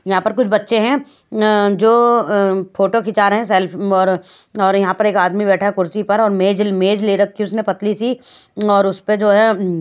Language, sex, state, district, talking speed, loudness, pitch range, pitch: Hindi, female, Haryana, Rohtak, 215 wpm, -15 LUFS, 195-220 Hz, 205 Hz